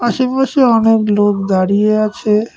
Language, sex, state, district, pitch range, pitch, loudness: Bengali, male, West Bengal, Cooch Behar, 205-240 Hz, 215 Hz, -13 LUFS